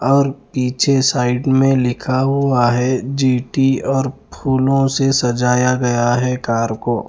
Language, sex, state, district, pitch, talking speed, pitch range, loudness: Hindi, male, Punjab, Fazilka, 130 Hz, 150 wpm, 125-135 Hz, -16 LUFS